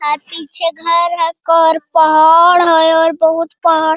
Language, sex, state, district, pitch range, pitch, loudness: Hindi, male, Bihar, Jamui, 320-335 Hz, 330 Hz, -11 LUFS